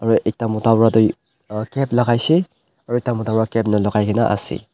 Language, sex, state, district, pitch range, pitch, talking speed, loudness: Nagamese, male, Nagaland, Dimapur, 110-120 Hz, 115 Hz, 175 wpm, -18 LUFS